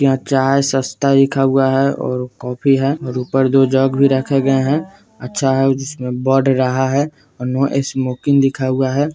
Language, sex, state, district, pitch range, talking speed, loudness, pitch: Bajjika, male, Bihar, Vaishali, 130-135 Hz, 195 wpm, -16 LUFS, 135 Hz